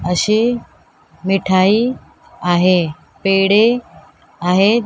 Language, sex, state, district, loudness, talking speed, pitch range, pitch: Marathi, female, Maharashtra, Mumbai Suburban, -15 LUFS, 60 wpm, 180-230 Hz, 195 Hz